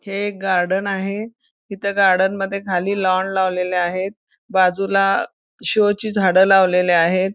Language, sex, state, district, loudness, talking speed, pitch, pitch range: Marathi, female, Karnataka, Belgaum, -18 LUFS, 130 wpm, 195 Hz, 185-200 Hz